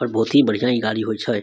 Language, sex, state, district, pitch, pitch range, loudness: Maithili, male, Bihar, Samastipur, 110 Hz, 110-125 Hz, -19 LUFS